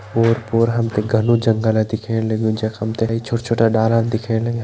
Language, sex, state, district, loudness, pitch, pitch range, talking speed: Hindi, male, Uttarakhand, Tehri Garhwal, -18 LUFS, 115 Hz, 110-115 Hz, 205 wpm